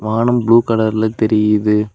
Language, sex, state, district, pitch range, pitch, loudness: Tamil, male, Tamil Nadu, Kanyakumari, 105-115 Hz, 110 Hz, -14 LUFS